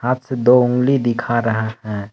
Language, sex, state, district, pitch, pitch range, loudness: Hindi, male, Jharkhand, Palamu, 120 Hz, 110-125 Hz, -17 LUFS